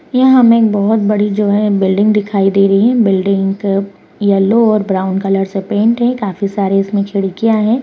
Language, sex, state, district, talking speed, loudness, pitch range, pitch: Hindi, female, Uttarakhand, Uttarkashi, 200 wpm, -13 LUFS, 195-220 Hz, 205 Hz